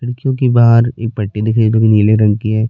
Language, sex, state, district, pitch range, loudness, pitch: Hindi, male, Chhattisgarh, Bastar, 110-120 Hz, -13 LUFS, 110 Hz